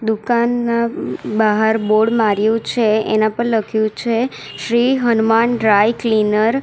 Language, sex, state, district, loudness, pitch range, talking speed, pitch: Gujarati, female, Gujarat, Valsad, -16 LUFS, 215-235 Hz, 125 wpm, 225 Hz